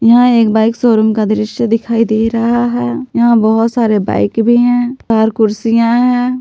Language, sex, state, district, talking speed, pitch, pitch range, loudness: Hindi, female, Jharkhand, Palamu, 180 wpm, 230 Hz, 220-240 Hz, -12 LUFS